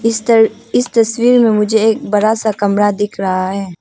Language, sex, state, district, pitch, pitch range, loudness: Hindi, female, Arunachal Pradesh, Papum Pare, 220 Hz, 205-230 Hz, -13 LUFS